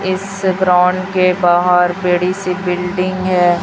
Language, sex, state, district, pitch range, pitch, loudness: Hindi, female, Chhattisgarh, Raipur, 180-185 Hz, 180 Hz, -14 LUFS